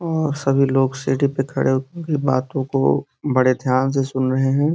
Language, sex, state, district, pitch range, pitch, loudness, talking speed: Hindi, male, Uttar Pradesh, Gorakhpur, 130-140 Hz, 135 Hz, -20 LUFS, 190 wpm